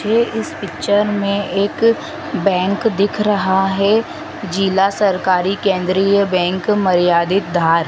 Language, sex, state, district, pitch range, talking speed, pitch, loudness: Hindi, female, Madhya Pradesh, Dhar, 185-210 Hz, 115 wpm, 195 Hz, -16 LUFS